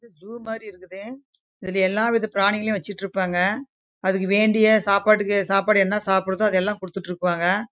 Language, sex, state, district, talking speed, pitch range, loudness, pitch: Tamil, female, Karnataka, Chamarajanagar, 130 wpm, 190-215 Hz, -21 LUFS, 200 Hz